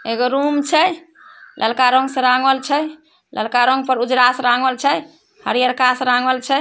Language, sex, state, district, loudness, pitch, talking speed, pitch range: Maithili, female, Bihar, Samastipur, -16 LUFS, 260 Hz, 170 wpm, 250-295 Hz